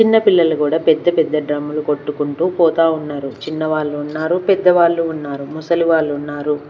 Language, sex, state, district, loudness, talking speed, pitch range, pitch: Telugu, female, Andhra Pradesh, Manyam, -17 LUFS, 145 wpm, 150-170 Hz, 155 Hz